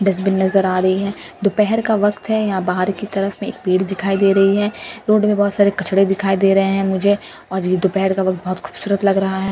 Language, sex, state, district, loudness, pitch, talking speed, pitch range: Hindi, female, Delhi, New Delhi, -17 LUFS, 195 Hz, 250 wpm, 190-205 Hz